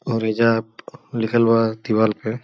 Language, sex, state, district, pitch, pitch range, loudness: Bhojpuri, male, Uttar Pradesh, Gorakhpur, 115 Hz, 110-115 Hz, -19 LUFS